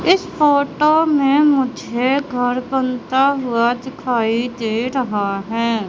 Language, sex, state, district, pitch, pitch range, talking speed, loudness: Hindi, female, Madhya Pradesh, Katni, 255 Hz, 235-280 Hz, 110 wpm, -17 LUFS